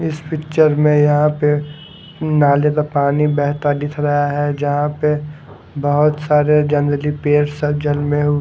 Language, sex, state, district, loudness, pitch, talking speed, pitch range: Hindi, male, Haryana, Charkhi Dadri, -16 LUFS, 150 Hz, 135 wpm, 145-150 Hz